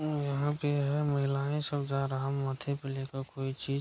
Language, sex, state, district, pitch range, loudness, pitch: Hindi, male, Bihar, Madhepura, 135-145 Hz, -33 LUFS, 140 Hz